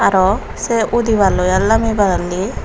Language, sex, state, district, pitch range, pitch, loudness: Chakma, female, Tripura, Unakoti, 185-225 Hz, 200 Hz, -15 LUFS